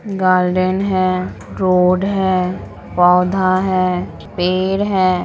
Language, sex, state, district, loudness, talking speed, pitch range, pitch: Hindi, female, Bihar, Supaul, -16 LUFS, 90 wpm, 180-190 Hz, 185 Hz